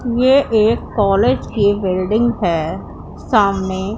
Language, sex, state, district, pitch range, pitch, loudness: Hindi, female, Punjab, Pathankot, 185-225 Hz, 200 Hz, -16 LUFS